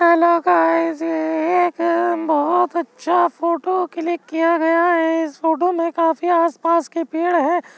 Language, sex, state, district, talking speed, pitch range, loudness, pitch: Hindi, male, Uttar Pradesh, Jyotiba Phule Nagar, 145 wpm, 325-345 Hz, -18 LUFS, 335 Hz